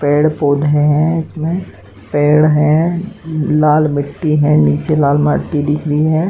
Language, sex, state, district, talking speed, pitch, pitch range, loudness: Hindi, male, Uttar Pradesh, Muzaffarnagar, 145 wpm, 150 Hz, 145-155 Hz, -14 LUFS